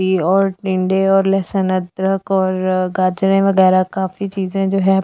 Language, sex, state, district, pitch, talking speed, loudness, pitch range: Hindi, female, Delhi, New Delhi, 190 Hz, 190 wpm, -16 LUFS, 185-195 Hz